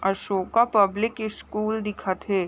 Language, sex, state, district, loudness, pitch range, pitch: Chhattisgarhi, female, Chhattisgarh, Raigarh, -24 LUFS, 195-220 Hz, 210 Hz